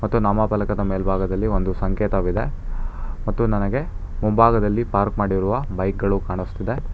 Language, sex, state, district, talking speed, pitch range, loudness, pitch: Kannada, male, Karnataka, Bangalore, 110 wpm, 95-110 Hz, -22 LUFS, 100 Hz